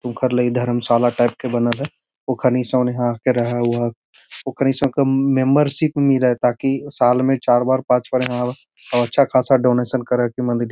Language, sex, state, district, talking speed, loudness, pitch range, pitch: Magahi, male, Bihar, Gaya, 190 wpm, -18 LUFS, 120-135 Hz, 125 Hz